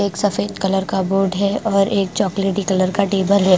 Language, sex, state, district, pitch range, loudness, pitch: Hindi, female, Bihar, Patna, 190-200 Hz, -18 LUFS, 195 Hz